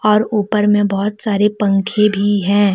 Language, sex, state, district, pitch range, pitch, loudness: Hindi, female, Jharkhand, Deoghar, 200-210 Hz, 205 Hz, -15 LUFS